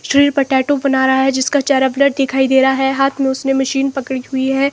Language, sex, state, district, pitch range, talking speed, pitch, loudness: Hindi, female, Himachal Pradesh, Shimla, 265-275 Hz, 240 wpm, 270 Hz, -15 LUFS